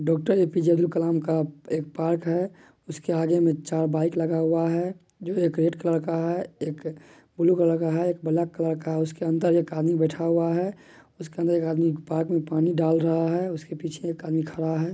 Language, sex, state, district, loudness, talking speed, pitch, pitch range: Maithili, male, Bihar, Madhepura, -25 LUFS, 215 wpm, 165 Hz, 160-170 Hz